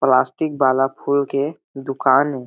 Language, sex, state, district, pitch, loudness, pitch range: Chhattisgarhi, male, Chhattisgarh, Jashpur, 140 Hz, -19 LUFS, 135-145 Hz